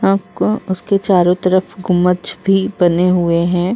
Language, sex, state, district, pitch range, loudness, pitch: Hindi, female, Uttar Pradesh, Muzaffarnagar, 180-195 Hz, -15 LUFS, 185 Hz